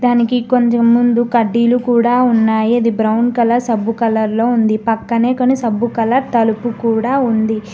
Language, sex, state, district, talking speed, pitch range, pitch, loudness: Telugu, female, Telangana, Mahabubabad, 155 wpm, 225-240 Hz, 235 Hz, -14 LUFS